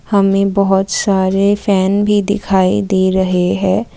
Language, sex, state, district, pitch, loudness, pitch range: Hindi, female, Assam, Kamrup Metropolitan, 195 Hz, -14 LUFS, 190-200 Hz